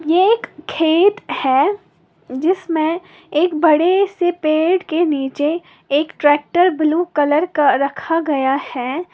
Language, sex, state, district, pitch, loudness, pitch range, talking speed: Hindi, female, Uttar Pradesh, Lalitpur, 325 Hz, -17 LUFS, 290-355 Hz, 125 wpm